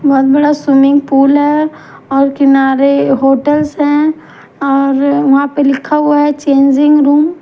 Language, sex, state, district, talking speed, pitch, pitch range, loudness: Hindi, female, Haryana, Jhajjar, 135 wpm, 285 Hz, 275-295 Hz, -10 LUFS